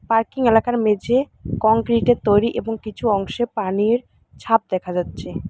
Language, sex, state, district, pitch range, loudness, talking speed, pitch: Bengali, female, West Bengal, Alipurduar, 210-235 Hz, -20 LUFS, 140 wpm, 225 Hz